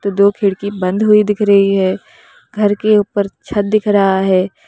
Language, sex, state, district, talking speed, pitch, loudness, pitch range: Hindi, female, Uttar Pradesh, Lalitpur, 180 wpm, 200 Hz, -14 LUFS, 195-210 Hz